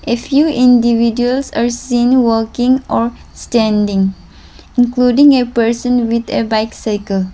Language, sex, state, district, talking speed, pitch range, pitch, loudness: English, female, Arunachal Pradesh, Lower Dibang Valley, 130 wpm, 225-250 Hz, 240 Hz, -13 LUFS